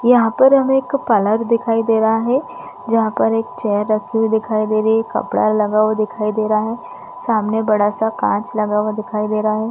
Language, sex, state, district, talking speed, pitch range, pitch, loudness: Hindi, female, Chhattisgarh, Bastar, 230 wpm, 215-230 Hz, 220 Hz, -17 LUFS